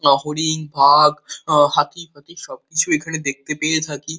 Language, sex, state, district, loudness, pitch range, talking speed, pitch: Bengali, male, West Bengal, Kolkata, -17 LUFS, 145-160 Hz, 130 wpm, 150 Hz